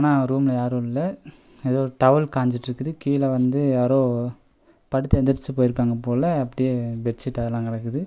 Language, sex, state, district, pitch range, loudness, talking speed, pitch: Tamil, male, Tamil Nadu, Nilgiris, 120-135 Hz, -22 LUFS, 135 wpm, 130 Hz